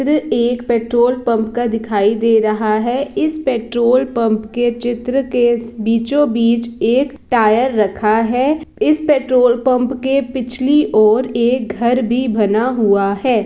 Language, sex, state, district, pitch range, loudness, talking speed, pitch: Hindi, female, Bihar, East Champaran, 225-255 Hz, -15 LUFS, 170 wpm, 240 Hz